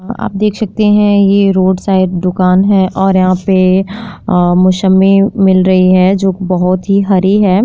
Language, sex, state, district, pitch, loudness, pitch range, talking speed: Hindi, female, Uttar Pradesh, Jyotiba Phule Nagar, 190 Hz, -10 LUFS, 185-200 Hz, 170 wpm